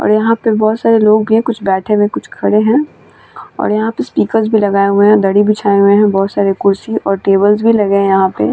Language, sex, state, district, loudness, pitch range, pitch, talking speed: Hindi, female, Bihar, Vaishali, -12 LUFS, 200-220 Hz, 210 Hz, 275 wpm